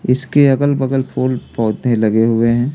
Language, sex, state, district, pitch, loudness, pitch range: Hindi, male, Delhi, New Delhi, 130 Hz, -15 LUFS, 115-135 Hz